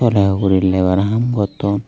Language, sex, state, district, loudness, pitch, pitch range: Chakma, male, Tripura, Dhalai, -16 LUFS, 100 Hz, 95-110 Hz